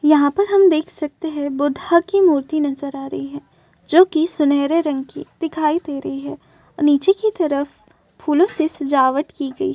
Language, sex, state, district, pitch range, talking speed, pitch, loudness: Hindi, female, Maharashtra, Chandrapur, 280-340 Hz, 185 wpm, 300 Hz, -18 LUFS